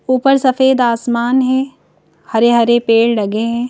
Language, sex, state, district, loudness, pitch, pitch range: Hindi, female, Madhya Pradesh, Bhopal, -13 LUFS, 240 Hz, 230-260 Hz